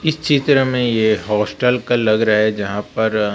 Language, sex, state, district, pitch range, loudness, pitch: Hindi, male, Chhattisgarh, Raipur, 105-125 Hz, -17 LUFS, 110 Hz